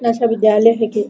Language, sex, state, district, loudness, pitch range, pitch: Hindi, female, Bihar, Araria, -14 LUFS, 215-230 Hz, 225 Hz